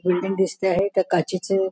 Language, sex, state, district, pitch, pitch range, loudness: Marathi, female, Maharashtra, Nagpur, 190 Hz, 185-195 Hz, -22 LUFS